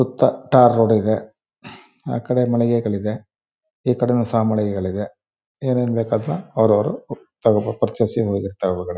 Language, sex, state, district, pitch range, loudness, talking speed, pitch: Kannada, male, Karnataka, Shimoga, 105-120 Hz, -19 LUFS, 120 wpm, 115 Hz